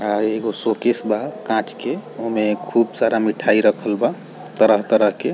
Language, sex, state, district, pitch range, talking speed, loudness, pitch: Bhojpuri, male, Bihar, East Champaran, 105-115 Hz, 180 wpm, -19 LUFS, 110 Hz